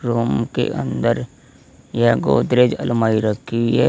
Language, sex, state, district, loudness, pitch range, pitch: Hindi, male, Uttar Pradesh, Saharanpur, -19 LUFS, 115-120 Hz, 115 Hz